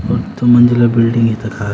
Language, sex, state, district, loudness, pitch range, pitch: Garhwali, male, Uttarakhand, Uttarkashi, -12 LUFS, 115-120 Hz, 115 Hz